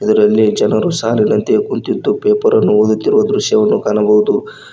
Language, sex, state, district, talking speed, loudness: Kannada, male, Karnataka, Koppal, 115 wpm, -13 LUFS